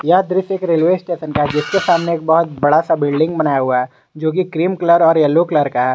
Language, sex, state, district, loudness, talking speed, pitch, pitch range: Hindi, male, Jharkhand, Garhwa, -15 LUFS, 265 wpm, 160 Hz, 145-175 Hz